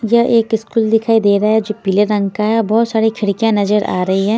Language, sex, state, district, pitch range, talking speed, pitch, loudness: Hindi, female, Haryana, Jhajjar, 205-225 Hz, 275 wpm, 220 Hz, -14 LUFS